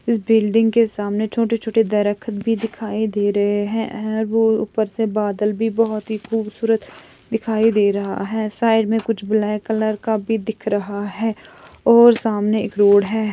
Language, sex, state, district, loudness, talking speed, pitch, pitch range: Hindi, female, Andhra Pradesh, Chittoor, -19 LUFS, 160 wpm, 220 Hz, 210-225 Hz